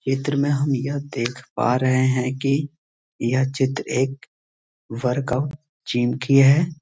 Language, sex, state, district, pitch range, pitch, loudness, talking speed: Hindi, male, Bihar, East Champaran, 125-140 Hz, 130 Hz, -21 LUFS, 140 wpm